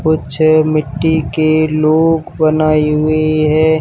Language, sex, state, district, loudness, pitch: Hindi, male, Rajasthan, Barmer, -13 LUFS, 155 Hz